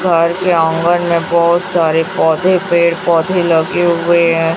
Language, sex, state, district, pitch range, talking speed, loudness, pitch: Hindi, female, Chhattisgarh, Raipur, 165-175 Hz, 155 wpm, -13 LUFS, 170 Hz